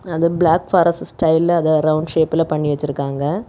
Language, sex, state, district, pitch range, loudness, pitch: Tamil, female, Tamil Nadu, Kanyakumari, 155-170 Hz, -17 LUFS, 160 Hz